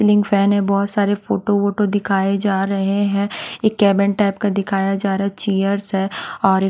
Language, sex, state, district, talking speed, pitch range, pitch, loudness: Hindi, female, Punjab, Pathankot, 205 wpm, 195-205 Hz, 200 Hz, -18 LUFS